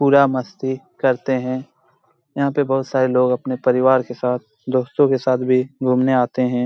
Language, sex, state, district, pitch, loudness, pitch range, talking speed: Hindi, male, Jharkhand, Jamtara, 130 Hz, -19 LUFS, 125-130 Hz, 180 wpm